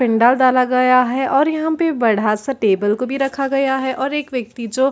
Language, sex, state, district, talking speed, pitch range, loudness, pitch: Hindi, female, Chhattisgarh, Bilaspur, 230 wpm, 240-275 Hz, -17 LUFS, 260 Hz